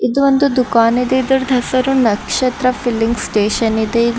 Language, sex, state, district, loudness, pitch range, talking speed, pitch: Kannada, female, Karnataka, Bidar, -15 LUFS, 230-260 Hz, 170 wpm, 245 Hz